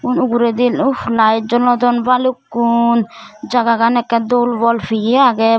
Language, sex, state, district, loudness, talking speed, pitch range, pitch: Chakma, female, Tripura, Dhalai, -14 LUFS, 105 wpm, 230-245 Hz, 235 Hz